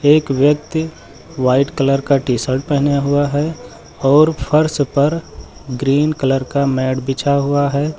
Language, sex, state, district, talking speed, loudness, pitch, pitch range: Hindi, male, Uttar Pradesh, Lucknow, 150 wpm, -16 LUFS, 140 Hz, 135-150 Hz